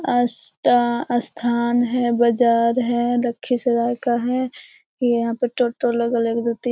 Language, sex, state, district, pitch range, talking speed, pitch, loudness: Hindi, female, Bihar, Lakhisarai, 235-245 Hz, 150 wpm, 240 Hz, -20 LUFS